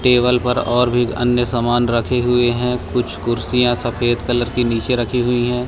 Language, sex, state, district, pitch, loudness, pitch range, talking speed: Hindi, male, Madhya Pradesh, Katni, 120 Hz, -17 LUFS, 120-125 Hz, 190 wpm